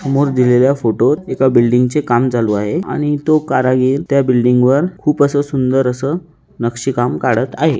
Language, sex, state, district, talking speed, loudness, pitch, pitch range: Marathi, male, Maharashtra, Chandrapur, 175 wpm, -14 LUFS, 130 Hz, 125-145 Hz